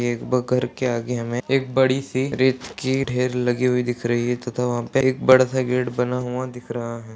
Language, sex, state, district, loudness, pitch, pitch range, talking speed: Hindi, male, Uttar Pradesh, Deoria, -22 LUFS, 125 Hz, 120-130 Hz, 245 wpm